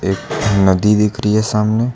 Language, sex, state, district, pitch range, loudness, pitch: Hindi, male, Uttar Pradesh, Lucknow, 100-110 Hz, -15 LUFS, 105 Hz